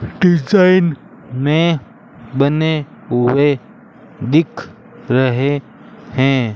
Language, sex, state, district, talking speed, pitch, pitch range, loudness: Hindi, male, Rajasthan, Bikaner, 65 wpm, 140 Hz, 130-160 Hz, -15 LUFS